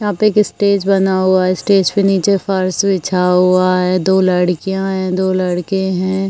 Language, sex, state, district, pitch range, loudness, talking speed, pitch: Hindi, female, Uttar Pradesh, Jyotiba Phule Nagar, 185-195 Hz, -14 LUFS, 190 wpm, 190 Hz